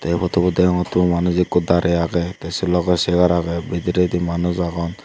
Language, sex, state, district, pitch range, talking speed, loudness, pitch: Chakma, male, Tripura, Unakoti, 85-90 Hz, 180 wpm, -19 LUFS, 90 Hz